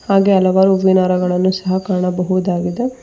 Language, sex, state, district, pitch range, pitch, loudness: Kannada, female, Karnataka, Bangalore, 180-190 Hz, 185 Hz, -15 LUFS